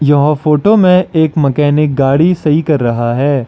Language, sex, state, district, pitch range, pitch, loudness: Hindi, male, Arunachal Pradesh, Lower Dibang Valley, 140-160 Hz, 150 Hz, -11 LUFS